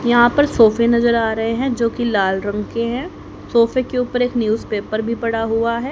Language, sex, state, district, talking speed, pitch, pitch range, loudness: Hindi, female, Haryana, Jhajjar, 220 wpm, 230 Hz, 225-240 Hz, -18 LUFS